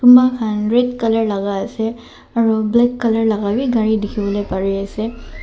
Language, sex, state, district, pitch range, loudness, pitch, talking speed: Nagamese, male, Nagaland, Dimapur, 205-235 Hz, -17 LUFS, 220 Hz, 145 wpm